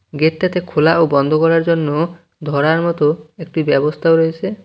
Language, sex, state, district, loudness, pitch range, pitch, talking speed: Bengali, male, West Bengal, Cooch Behar, -16 LUFS, 150-170 Hz, 160 Hz, 140 wpm